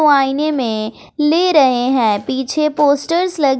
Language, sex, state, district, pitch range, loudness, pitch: Hindi, female, Bihar, West Champaran, 260-305 Hz, -15 LUFS, 280 Hz